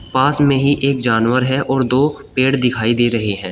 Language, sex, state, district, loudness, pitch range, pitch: Hindi, male, Uttar Pradesh, Shamli, -16 LUFS, 120-135 Hz, 130 Hz